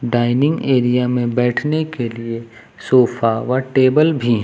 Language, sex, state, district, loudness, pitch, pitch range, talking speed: Hindi, male, Uttar Pradesh, Lucknow, -17 LUFS, 125 Hz, 120-130 Hz, 150 wpm